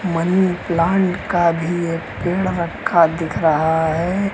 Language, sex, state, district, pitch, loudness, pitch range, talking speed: Hindi, male, Uttar Pradesh, Lucknow, 170 Hz, -18 LUFS, 165-185 Hz, 125 wpm